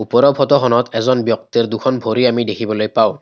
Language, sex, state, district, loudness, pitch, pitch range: Assamese, male, Assam, Kamrup Metropolitan, -15 LUFS, 120 Hz, 110-130 Hz